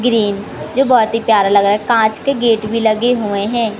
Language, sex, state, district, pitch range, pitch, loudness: Hindi, male, Madhya Pradesh, Katni, 210-240 Hz, 220 Hz, -14 LUFS